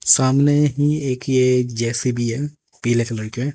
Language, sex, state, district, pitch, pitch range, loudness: Hindi, male, Haryana, Jhajjar, 130 Hz, 120-145 Hz, -19 LUFS